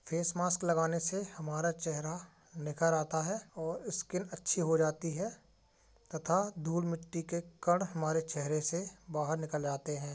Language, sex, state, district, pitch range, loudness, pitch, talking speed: Hindi, male, Uttar Pradesh, Jalaun, 160-175 Hz, -35 LUFS, 165 Hz, 160 wpm